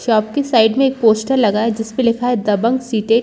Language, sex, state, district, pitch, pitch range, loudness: Hindi, female, Chhattisgarh, Balrampur, 230 Hz, 220-250 Hz, -16 LUFS